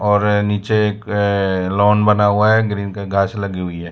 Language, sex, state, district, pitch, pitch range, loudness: Hindi, male, Gujarat, Valsad, 105 Hz, 100-105 Hz, -16 LUFS